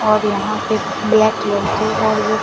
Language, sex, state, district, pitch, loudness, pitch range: Hindi, female, Rajasthan, Bikaner, 215 Hz, -17 LUFS, 210-220 Hz